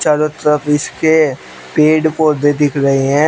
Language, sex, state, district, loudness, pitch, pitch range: Hindi, male, Uttar Pradesh, Shamli, -13 LUFS, 150 Hz, 145-155 Hz